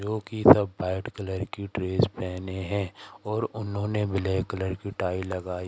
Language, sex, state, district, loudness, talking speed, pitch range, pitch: Hindi, female, Madhya Pradesh, Katni, -27 LUFS, 170 wpm, 95-105 Hz, 100 Hz